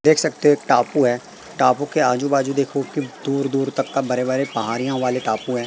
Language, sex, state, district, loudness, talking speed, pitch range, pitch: Hindi, male, Madhya Pradesh, Katni, -20 LUFS, 235 wpm, 125-140 Hz, 135 Hz